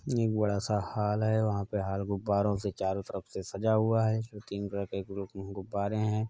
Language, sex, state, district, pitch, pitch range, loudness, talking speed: Hindi, male, Uttar Pradesh, Varanasi, 105 Hz, 100-110 Hz, -31 LUFS, 240 wpm